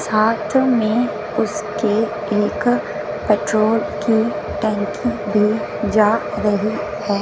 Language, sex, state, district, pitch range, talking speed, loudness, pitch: Hindi, female, Punjab, Fazilka, 205-220 Hz, 90 wpm, -19 LUFS, 210 Hz